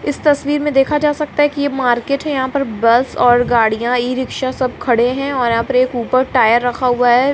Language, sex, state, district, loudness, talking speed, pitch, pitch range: Hindi, female, Bihar, Jamui, -15 LUFS, 235 wpm, 255 Hz, 240-280 Hz